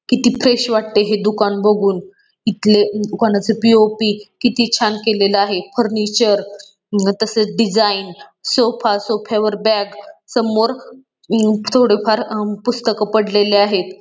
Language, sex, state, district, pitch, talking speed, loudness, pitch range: Marathi, female, Maharashtra, Pune, 215 Hz, 120 wpm, -16 LUFS, 205-225 Hz